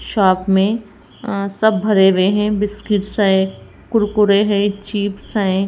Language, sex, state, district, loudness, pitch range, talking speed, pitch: Hindi, female, Bihar, Katihar, -16 LUFS, 195-210 Hz, 135 wpm, 205 Hz